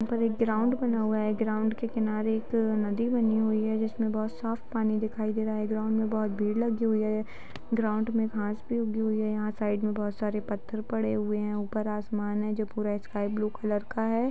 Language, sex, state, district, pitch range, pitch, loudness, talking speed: Hindi, female, Bihar, Jamui, 215-225 Hz, 215 Hz, -29 LUFS, 235 wpm